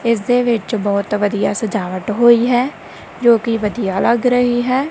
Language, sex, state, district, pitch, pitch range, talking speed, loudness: Punjabi, female, Punjab, Kapurthala, 230 Hz, 205-245 Hz, 160 wpm, -16 LUFS